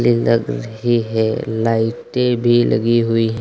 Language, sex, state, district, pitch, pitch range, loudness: Hindi, male, Uttar Pradesh, Lucknow, 115 Hz, 110-120 Hz, -17 LUFS